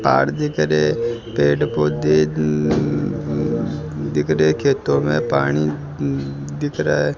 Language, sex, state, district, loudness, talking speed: Hindi, male, Rajasthan, Jaipur, -19 LUFS, 115 wpm